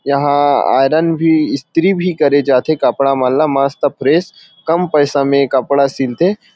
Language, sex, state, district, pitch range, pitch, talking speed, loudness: Chhattisgarhi, male, Chhattisgarh, Rajnandgaon, 140-165 Hz, 145 Hz, 145 wpm, -13 LUFS